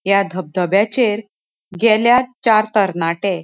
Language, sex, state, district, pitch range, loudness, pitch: Konkani, female, Goa, North and South Goa, 185-220 Hz, -16 LUFS, 205 Hz